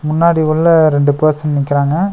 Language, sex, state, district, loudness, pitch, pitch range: Tamil, male, Tamil Nadu, Nilgiris, -12 LUFS, 155 Hz, 145-165 Hz